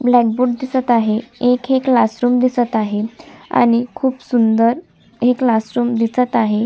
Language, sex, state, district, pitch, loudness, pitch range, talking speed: Marathi, female, Maharashtra, Sindhudurg, 245 Hz, -16 LUFS, 225-250 Hz, 145 wpm